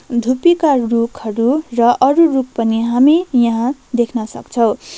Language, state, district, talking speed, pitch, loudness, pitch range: Nepali, West Bengal, Darjeeling, 120 wpm, 245 Hz, -15 LUFS, 235-275 Hz